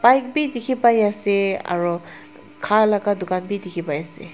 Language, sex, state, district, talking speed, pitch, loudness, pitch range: Nagamese, female, Nagaland, Dimapur, 110 wpm, 200 Hz, -21 LUFS, 175-215 Hz